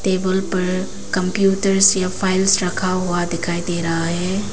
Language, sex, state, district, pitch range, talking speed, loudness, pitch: Hindi, female, Arunachal Pradesh, Papum Pare, 175-190 Hz, 145 wpm, -18 LUFS, 185 Hz